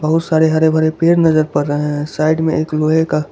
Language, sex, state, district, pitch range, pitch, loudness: Hindi, male, Gujarat, Valsad, 150-160 Hz, 155 Hz, -15 LUFS